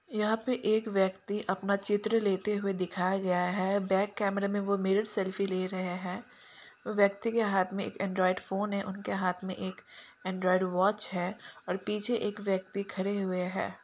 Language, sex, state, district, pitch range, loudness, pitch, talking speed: Hindi, female, Bihar, Purnia, 185-210 Hz, -31 LUFS, 195 Hz, 180 wpm